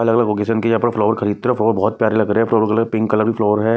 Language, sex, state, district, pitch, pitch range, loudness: Hindi, male, Maharashtra, Mumbai Suburban, 110 Hz, 105-115 Hz, -17 LUFS